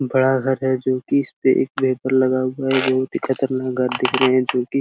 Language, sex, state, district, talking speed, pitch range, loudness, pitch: Hindi, male, Bihar, Araria, 260 wpm, 130-135 Hz, -19 LUFS, 130 Hz